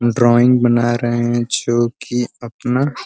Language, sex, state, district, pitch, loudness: Hindi, male, Uttar Pradesh, Ghazipur, 120 Hz, -16 LUFS